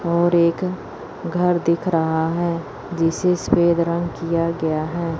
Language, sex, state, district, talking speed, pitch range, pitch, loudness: Hindi, female, Chandigarh, Chandigarh, 140 wpm, 165-175 Hz, 170 Hz, -20 LUFS